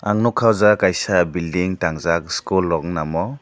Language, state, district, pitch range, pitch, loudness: Kokborok, Tripura, Dhalai, 85-105 Hz, 90 Hz, -19 LUFS